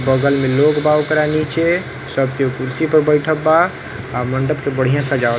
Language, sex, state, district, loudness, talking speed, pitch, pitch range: Bhojpuri, male, Uttar Pradesh, Varanasi, -16 LUFS, 200 wpm, 140 Hz, 130-155 Hz